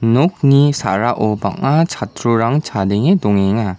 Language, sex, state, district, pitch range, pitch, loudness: Garo, male, Meghalaya, West Garo Hills, 100-145 Hz, 115 Hz, -15 LUFS